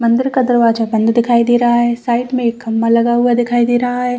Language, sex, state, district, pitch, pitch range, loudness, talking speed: Hindi, female, Chhattisgarh, Bastar, 240 Hz, 235-245 Hz, -14 LUFS, 260 wpm